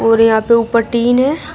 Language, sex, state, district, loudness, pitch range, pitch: Hindi, female, Uttar Pradesh, Shamli, -13 LUFS, 225-250 Hz, 235 Hz